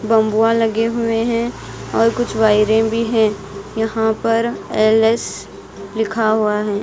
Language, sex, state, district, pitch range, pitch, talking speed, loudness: Hindi, female, Himachal Pradesh, Shimla, 215-230 Hz, 220 Hz, 130 wpm, -17 LUFS